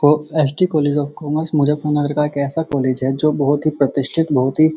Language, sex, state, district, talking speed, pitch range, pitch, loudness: Hindi, male, Uttar Pradesh, Muzaffarnagar, 190 wpm, 140-155 Hz, 145 Hz, -17 LUFS